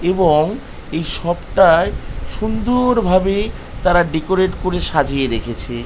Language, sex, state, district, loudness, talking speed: Bengali, male, West Bengal, North 24 Parganas, -17 LUFS, 115 wpm